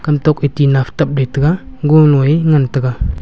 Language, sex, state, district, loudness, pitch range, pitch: Wancho, male, Arunachal Pradesh, Longding, -13 LUFS, 135-155 Hz, 145 Hz